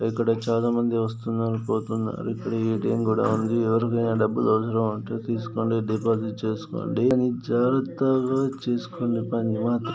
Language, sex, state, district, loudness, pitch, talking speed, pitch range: Telugu, male, Andhra Pradesh, Guntur, -25 LUFS, 115 Hz, 135 wpm, 110-120 Hz